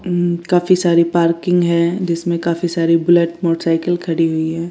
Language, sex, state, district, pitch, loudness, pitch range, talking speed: Hindi, female, Chandigarh, Chandigarh, 170 Hz, -16 LUFS, 165-175 Hz, 165 wpm